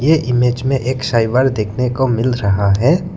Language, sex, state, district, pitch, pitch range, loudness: Hindi, male, Arunachal Pradesh, Lower Dibang Valley, 125 Hz, 115-130 Hz, -15 LUFS